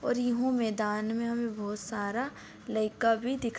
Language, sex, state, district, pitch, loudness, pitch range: Bhojpuri, female, Uttar Pradesh, Deoria, 230 Hz, -31 LUFS, 215-245 Hz